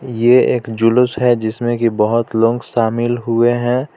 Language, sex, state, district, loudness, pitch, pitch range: Hindi, male, Jharkhand, Palamu, -15 LUFS, 120 Hz, 115-120 Hz